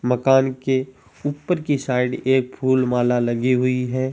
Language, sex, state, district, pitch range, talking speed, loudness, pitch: Hindi, male, Rajasthan, Churu, 125-135 Hz, 160 wpm, -20 LUFS, 130 Hz